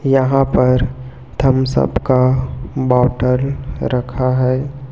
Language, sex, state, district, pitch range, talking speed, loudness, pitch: Hindi, male, Chhattisgarh, Raipur, 125-135 Hz, 85 wpm, -16 LUFS, 130 Hz